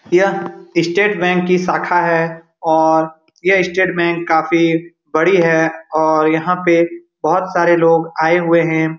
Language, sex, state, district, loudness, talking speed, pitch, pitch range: Hindi, male, Bihar, Supaul, -15 LUFS, 155 wpm, 170 Hz, 160-180 Hz